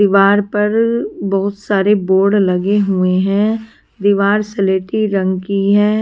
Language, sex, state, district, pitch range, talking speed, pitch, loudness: Hindi, female, Maharashtra, Washim, 195-210 Hz, 130 wpm, 200 Hz, -15 LUFS